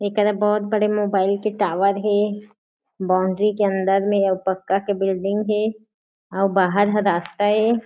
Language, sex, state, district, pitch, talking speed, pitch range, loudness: Chhattisgarhi, female, Chhattisgarh, Jashpur, 205 Hz, 160 wpm, 195-210 Hz, -20 LUFS